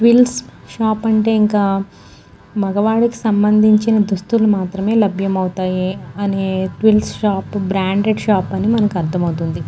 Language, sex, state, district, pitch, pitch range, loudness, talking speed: Telugu, female, Andhra Pradesh, Guntur, 205 Hz, 190-215 Hz, -16 LUFS, 110 wpm